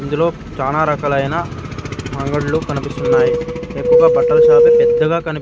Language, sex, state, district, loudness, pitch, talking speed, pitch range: Telugu, male, Andhra Pradesh, Sri Satya Sai, -14 LUFS, 155 Hz, 110 wpm, 140-170 Hz